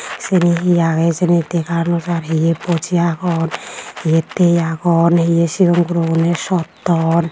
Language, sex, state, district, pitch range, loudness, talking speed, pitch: Chakma, female, Tripura, Unakoti, 165-175 Hz, -16 LUFS, 140 wpm, 170 Hz